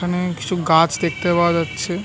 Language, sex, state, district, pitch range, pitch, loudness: Bengali, male, West Bengal, North 24 Parganas, 165-180 Hz, 175 Hz, -18 LUFS